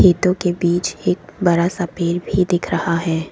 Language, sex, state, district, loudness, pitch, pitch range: Hindi, female, Assam, Kamrup Metropolitan, -19 LUFS, 175 Hz, 170-180 Hz